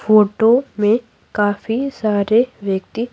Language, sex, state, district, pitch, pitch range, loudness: Hindi, female, Bihar, Patna, 220 Hz, 205-235 Hz, -17 LUFS